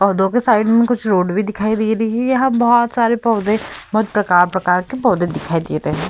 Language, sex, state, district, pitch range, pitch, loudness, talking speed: Hindi, female, Uttar Pradesh, Hamirpur, 185-235 Hz, 215 Hz, -16 LUFS, 225 wpm